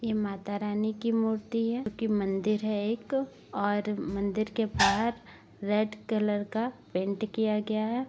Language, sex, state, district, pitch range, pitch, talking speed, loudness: Bhojpuri, female, Bihar, Saran, 205-225 Hz, 215 Hz, 170 wpm, -30 LUFS